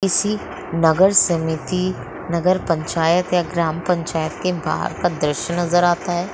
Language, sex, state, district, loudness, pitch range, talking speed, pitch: Hindi, female, Bihar, Muzaffarpur, -19 LUFS, 165-180 Hz, 140 wpm, 175 Hz